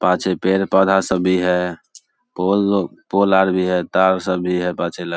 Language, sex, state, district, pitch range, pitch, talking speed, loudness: Hindi, male, Bihar, Darbhanga, 90-95 Hz, 90 Hz, 175 wpm, -18 LUFS